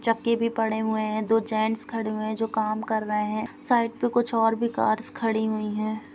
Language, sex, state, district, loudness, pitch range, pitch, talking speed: Hindi, female, Bihar, Gopalganj, -26 LUFS, 215-230 Hz, 225 Hz, 235 wpm